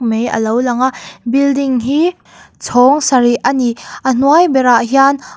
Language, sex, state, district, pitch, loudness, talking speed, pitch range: Mizo, female, Mizoram, Aizawl, 255 Hz, -12 LUFS, 155 wpm, 240-275 Hz